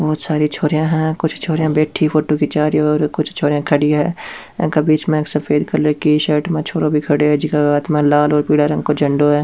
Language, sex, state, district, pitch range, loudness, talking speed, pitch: Rajasthani, male, Rajasthan, Churu, 150-155 Hz, -16 LUFS, 250 wpm, 150 Hz